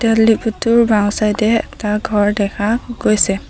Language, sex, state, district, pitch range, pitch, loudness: Assamese, female, Assam, Sonitpur, 210-230 Hz, 215 Hz, -15 LUFS